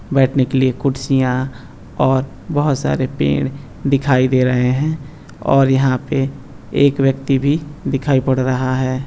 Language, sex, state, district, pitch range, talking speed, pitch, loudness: Hindi, male, Rajasthan, Nagaur, 130-140 Hz, 145 wpm, 135 Hz, -17 LUFS